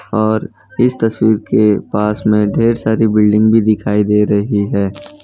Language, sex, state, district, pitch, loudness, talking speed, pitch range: Hindi, male, Gujarat, Valsad, 110 Hz, -14 LUFS, 160 wpm, 105-110 Hz